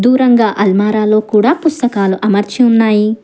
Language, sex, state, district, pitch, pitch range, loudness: Telugu, female, Telangana, Hyderabad, 215 Hz, 210-245 Hz, -11 LUFS